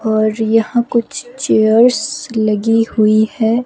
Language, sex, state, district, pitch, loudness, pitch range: Hindi, female, Himachal Pradesh, Shimla, 225 Hz, -14 LUFS, 220-240 Hz